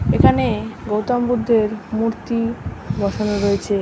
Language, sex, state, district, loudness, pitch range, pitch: Bengali, female, West Bengal, North 24 Parganas, -20 LUFS, 205-230 Hz, 215 Hz